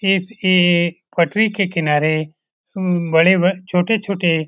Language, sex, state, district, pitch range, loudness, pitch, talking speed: Hindi, male, Bihar, Lakhisarai, 165-195 Hz, -17 LUFS, 180 Hz, 120 wpm